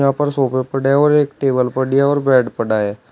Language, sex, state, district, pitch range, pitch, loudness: Hindi, male, Uttar Pradesh, Shamli, 130-140 Hz, 135 Hz, -16 LUFS